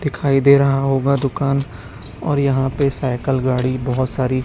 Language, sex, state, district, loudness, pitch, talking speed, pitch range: Hindi, male, Chhattisgarh, Raipur, -18 LUFS, 135 Hz, 160 wpm, 130-140 Hz